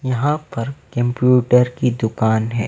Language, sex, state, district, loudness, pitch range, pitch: Hindi, male, Bihar, Patna, -18 LUFS, 115-130 Hz, 125 Hz